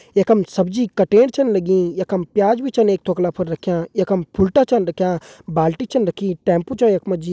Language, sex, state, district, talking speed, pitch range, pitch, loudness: Hindi, male, Uttarakhand, Uttarkashi, 205 wpm, 180-225 Hz, 190 Hz, -18 LUFS